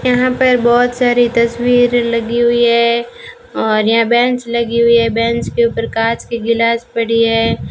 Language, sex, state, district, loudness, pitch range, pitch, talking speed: Hindi, female, Rajasthan, Bikaner, -13 LUFS, 230-245 Hz, 235 Hz, 170 wpm